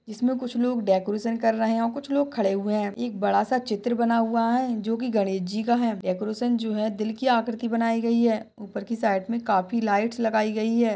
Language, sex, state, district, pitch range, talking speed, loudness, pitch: Hindi, female, Maharashtra, Solapur, 215-235 Hz, 235 wpm, -25 LUFS, 230 Hz